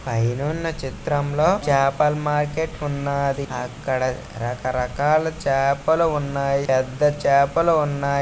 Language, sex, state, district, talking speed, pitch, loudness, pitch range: Telugu, male, Andhra Pradesh, Visakhapatnam, 90 wpm, 140 Hz, -21 LUFS, 135-150 Hz